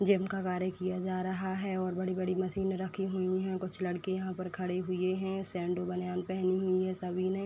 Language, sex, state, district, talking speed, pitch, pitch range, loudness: Hindi, female, Uttar Pradesh, Etah, 215 wpm, 185 Hz, 185-190 Hz, -34 LUFS